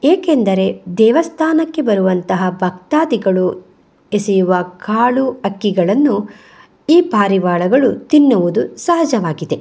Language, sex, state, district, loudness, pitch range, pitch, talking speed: Kannada, female, Karnataka, Bangalore, -14 LUFS, 185-290 Hz, 210 Hz, 75 wpm